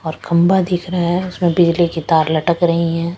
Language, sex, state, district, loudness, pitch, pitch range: Hindi, female, Punjab, Pathankot, -16 LUFS, 170 Hz, 165-175 Hz